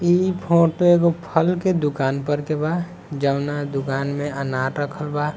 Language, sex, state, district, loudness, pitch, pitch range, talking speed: Bhojpuri, male, Bihar, Muzaffarpur, -21 LUFS, 150 Hz, 140-170 Hz, 170 wpm